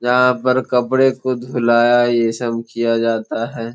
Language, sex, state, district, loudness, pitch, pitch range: Hindi, male, Bihar, Gopalganj, -17 LUFS, 120 Hz, 115-125 Hz